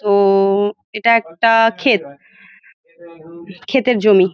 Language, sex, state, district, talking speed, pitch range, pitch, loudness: Bengali, female, West Bengal, Jalpaiguri, 95 wpm, 185-225 Hz, 200 Hz, -15 LUFS